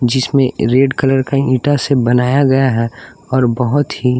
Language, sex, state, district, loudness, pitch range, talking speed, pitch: Hindi, male, Bihar, West Champaran, -14 LUFS, 125-135 Hz, 170 wpm, 130 Hz